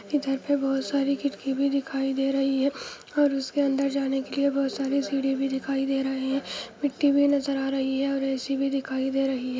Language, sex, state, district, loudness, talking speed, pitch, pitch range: Hindi, female, Andhra Pradesh, Anantapur, -26 LUFS, 240 wpm, 275 Hz, 270-280 Hz